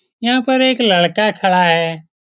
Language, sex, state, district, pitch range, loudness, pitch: Hindi, male, Bihar, Saran, 175-255 Hz, -14 LUFS, 210 Hz